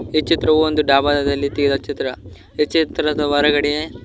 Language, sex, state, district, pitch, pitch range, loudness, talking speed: Kannada, male, Karnataka, Koppal, 150 Hz, 145-155 Hz, -18 LUFS, 135 wpm